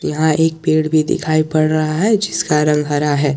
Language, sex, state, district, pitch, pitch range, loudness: Hindi, male, Jharkhand, Garhwa, 155 Hz, 150-155 Hz, -16 LUFS